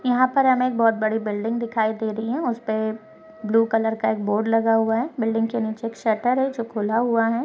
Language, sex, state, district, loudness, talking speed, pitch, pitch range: Hindi, female, Goa, North and South Goa, -22 LUFS, 240 wpm, 225 Hz, 220-240 Hz